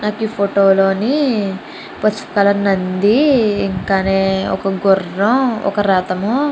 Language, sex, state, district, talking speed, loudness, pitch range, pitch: Telugu, female, Andhra Pradesh, Chittoor, 100 wpm, -15 LUFS, 195-220 Hz, 200 Hz